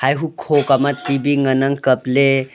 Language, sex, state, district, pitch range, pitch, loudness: Wancho, male, Arunachal Pradesh, Longding, 135-145 Hz, 135 Hz, -17 LUFS